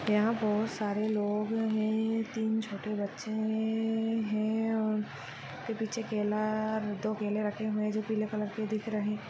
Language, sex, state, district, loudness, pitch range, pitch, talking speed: Hindi, female, Maharashtra, Nagpur, -32 LUFS, 210-220 Hz, 215 Hz, 160 wpm